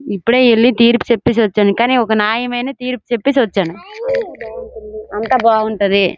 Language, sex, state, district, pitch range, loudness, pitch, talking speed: Telugu, female, Andhra Pradesh, Srikakulam, 215-255 Hz, -14 LUFS, 235 Hz, 125 wpm